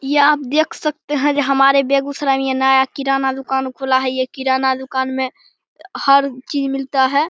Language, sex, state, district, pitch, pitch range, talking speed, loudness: Hindi, male, Bihar, Begusarai, 270 Hz, 265-280 Hz, 170 wpm, -17 LUFS